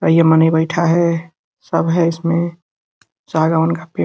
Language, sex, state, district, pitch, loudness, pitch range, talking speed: Hindi, male, Uttar Pradesh, Gorakhpur, 165 Hz, -16 LUFS, 160-170 Hz, 180 wpm